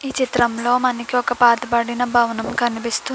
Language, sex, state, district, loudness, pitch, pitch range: Telugu, female, Andhra Pradesh, Krishna, -19 LUFS, 240 Hz, 235-250 Hz